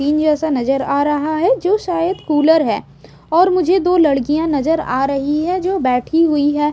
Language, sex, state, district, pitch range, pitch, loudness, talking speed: Hindi, female, Odisha, Sambalpur, 290-345 Hz, 310 Hz, -16 LUFS, 195 wpm